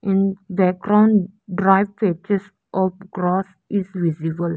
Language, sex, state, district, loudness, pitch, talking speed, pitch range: English, female, Arunachal Pradesh, Lower Dibang Valley, -20 LUFS, 190 Hz, 105 wpm, 180-200 Hz